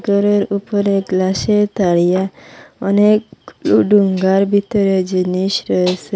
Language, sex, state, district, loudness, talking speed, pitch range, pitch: Bengali, female, Assam, Hailakandi, -15 LUFS, 95 wpm, 185-205 Hz, 195 Hz